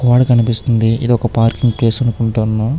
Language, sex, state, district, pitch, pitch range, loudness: Telugu, male, Andhra Pradesh, Chittoor, 115 Hz, 115-120 Hz, -14 LUFS